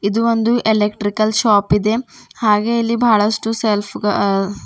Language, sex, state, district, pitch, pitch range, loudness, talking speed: Kannada, female, Karnataka, Bidar, 215 Hz, 205-225 Hz, -16 LUFS, 130 wpm